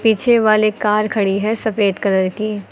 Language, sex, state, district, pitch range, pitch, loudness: Hindi, female, Uttar Pradesh, Lucknow, 200-220 Hz, 215 Hz, -16 LUFS